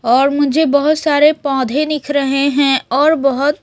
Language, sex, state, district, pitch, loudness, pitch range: Hindi, female, Chhattisgarh, Raipur, 285 Hz, -14 LUFS, 275-300 Hz